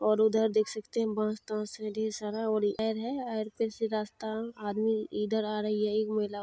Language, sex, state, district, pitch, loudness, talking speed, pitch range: Hindi, female, Bihar, Jamui, 215 Hz, -31 LUFS, 235 wpm, 215-220 Hz